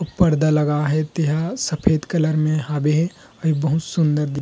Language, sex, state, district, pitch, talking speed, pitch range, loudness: Chhattisgarhi, male, Chhattisgarh, Rajnandgaon, 155 Hz, 175 wpm, 150-160 Hz, -20 LUFS